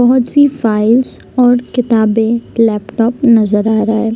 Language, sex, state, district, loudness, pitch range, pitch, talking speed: Hindi, female, Bihar, Gopalganj, -12 LUFS, 220-245 Hz, 230 Hz, 145 wpm